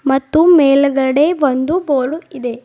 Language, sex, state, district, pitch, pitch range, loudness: Kannada, female, Karnataka, Bidar, 280 Hz, 265-310 Hz, -13 LUFS